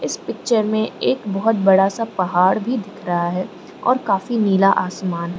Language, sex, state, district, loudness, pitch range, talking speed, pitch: Hindi, female, Arunachal Pradesh, Lower Dibang Valley, -19 LUFS, 185-225 Hz, 180 wpm, 195 Hz